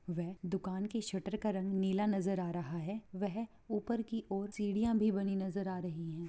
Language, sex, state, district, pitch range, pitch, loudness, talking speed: Hindi, female, Bihar, Bhagalpur, 185-210 Hz, 195 Hz, -37 LUFS, 200 wpm